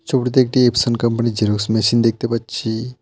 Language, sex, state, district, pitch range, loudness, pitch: Bengali, male, West Bengal, Alipurduar, 110-125 Hz, -17 LUFS, 115 Hz